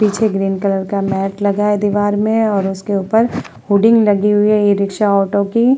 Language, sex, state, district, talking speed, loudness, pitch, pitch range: Hindi, female, Uttar Pradesh, Muzaffarnagar, 195 wpm, -15 LUFS, 205 Hz, 200-215 Hz